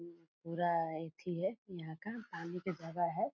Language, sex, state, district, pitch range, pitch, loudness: Hindi, female, Bihar, Purnia, 165-180 Hz, 170 Hz, -40 LUFS